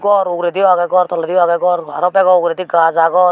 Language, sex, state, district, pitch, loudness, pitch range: Chakma, female, Tripura, Unakoti, 180 Hz, -13 LUFS, 170-185 Hz